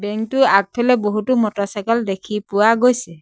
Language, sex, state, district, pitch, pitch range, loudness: Assamese, male, Assam, Sonitpur, 210 Hz, 205-240 Hz, -17 LUFS